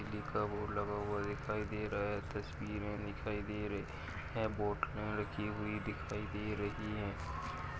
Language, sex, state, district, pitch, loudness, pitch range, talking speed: Hindi, male, Maharashtra, Sindhudurg, 105 Hz, -40 LUFS, 100-105 Hz, 155 wpm